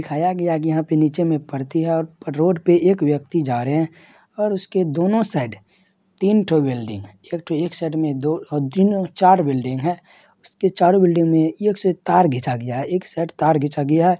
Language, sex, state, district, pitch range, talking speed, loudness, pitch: Hindi, male, Bihar, Madhepura, 150-185 Hz, 205 wpm, -19 LUFS, 165 Hz